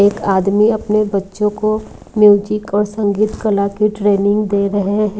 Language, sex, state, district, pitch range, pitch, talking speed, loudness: Hindi, female, Maharashtra, Mumbai Suburban, 200-215 Hz, 210 Hz, 160 wpm, -15 LUFS